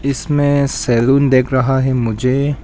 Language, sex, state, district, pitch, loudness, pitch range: Hindi, male, Arunachal Pradesh, Papum Pare, 135 Hz, -15 LUFS, 130-140 Hz